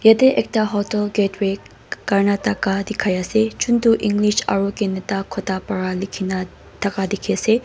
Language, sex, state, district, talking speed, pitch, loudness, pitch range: Nagamese, female, Mizoram, Aizawl, 150 wpm, 200 Hz, -20 LUFS, 195-215 Hz